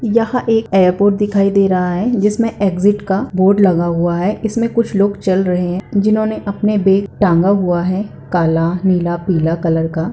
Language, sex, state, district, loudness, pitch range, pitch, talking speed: Hindi, female, Bihar, Saran, -15 LUFS, 180-210 Hz, 195 Hz, 190 wpm